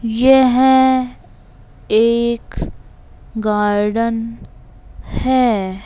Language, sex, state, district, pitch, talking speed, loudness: Hindi, male, Madhya Pradesh, Bhopal, 220 Hz, 40 wpm, -15 LUFS